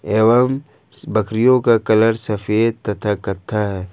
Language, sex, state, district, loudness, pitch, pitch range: Hindi, male, Jharkhand, Ranchi, -17 LUFS, 110 Hz, 105-115 Hz